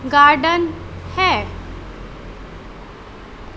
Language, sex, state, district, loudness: Hindi, female, Chhattisgarh, Raipur, -16 LUFS